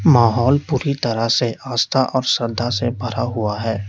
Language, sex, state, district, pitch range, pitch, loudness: Hindi, male, Uttar Pradesh, Lalitpur, 115-130 Hz, 120 Hz, -19 LUFS